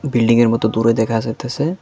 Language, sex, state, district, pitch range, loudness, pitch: Bengali, female, Tripura, West Tripura, 115-130 Hz, -16 LUFS, 115 Hz